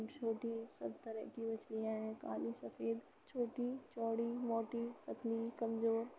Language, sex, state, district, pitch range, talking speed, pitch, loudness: Hindi, female, Uttar Pradesh, Etah, 220-235 Hz, 125 wpm, 225 Hz, -43 LUFS